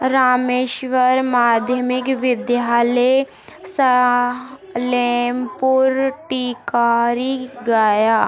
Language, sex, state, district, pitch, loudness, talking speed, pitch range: Hindi, female, Bihar, Gaya, 250 Hz, -17 LUFS, 45 wpm, 245-260 Hz